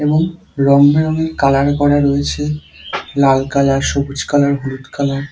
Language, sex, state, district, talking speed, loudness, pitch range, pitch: Bengali, male, West Bengal, Dakshin Dinajpur, 135 wpm, -15 LUFS, 140-145 Hz, 140 Hz